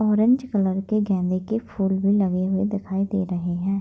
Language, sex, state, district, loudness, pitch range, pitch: Hindi, female, Bihar, Begusarai, -23 LUFS, 190-205 Hz, 195 Hz